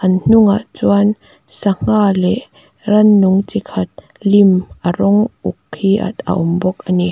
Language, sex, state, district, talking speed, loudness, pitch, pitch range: Mizo, female, Mizoram, Aizawl, 150 wpm, -14 LUFS, 195 Hz, 185-205 Hz